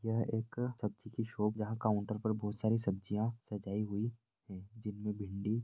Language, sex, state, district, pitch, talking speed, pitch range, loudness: Hindi, male, Uttar Pradesh, Jalaun, 105 Hz, 180 wpm, 105-115 Hz, -38 LUFS